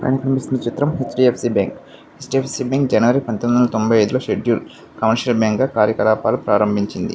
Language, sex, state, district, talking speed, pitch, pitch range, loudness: Telugu, male, Andhra Pradesh, Visakhapatnam, 195 wpm, 120 Hz, 110-130 Hz, -18 LUFS